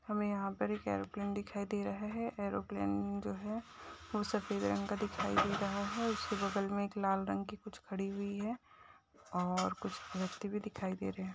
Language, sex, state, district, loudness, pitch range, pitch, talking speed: Hindi, female, Maharashtra, Dhule, -38 LUFS, 180-210 Hz, 200 Hz, 200 wpm